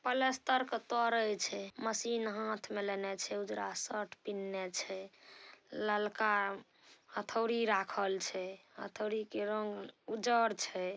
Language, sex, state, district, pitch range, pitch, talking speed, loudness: Maithili, female, Bihar, Saharsa, 195-225 Hz, 210 Hz, 120 wpm, -36 LUFS